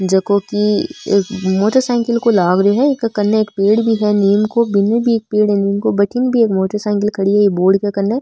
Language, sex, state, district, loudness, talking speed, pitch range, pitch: Marwari, female, Rajasthan, Nagaur, -15 LUFS, 225 wpm, 200-225 Hz, 210 Hz